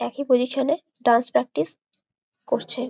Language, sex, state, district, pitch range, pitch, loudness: Bengali, female, West Bengal, Malda, 245-280 Hz, 250 Hz, -23 LUFS